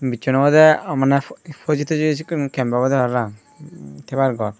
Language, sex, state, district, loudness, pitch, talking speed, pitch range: Chakma, male, Tripura, Unakoti, -18 LUFS, 135 Hz, 145 wpm, 125-150 Hz